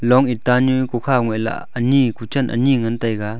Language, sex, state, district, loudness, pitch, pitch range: Wancho, male, Arunachal Pradesh, Longding, -18 LUFS, 125 Hz, 115-130 Hz